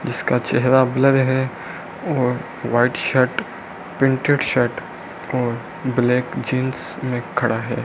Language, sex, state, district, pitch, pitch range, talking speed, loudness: Hindi, male, Rajasthan, Bikaner, 130 Hz, 125-135 Hz, 115 wpm, -20 LUFS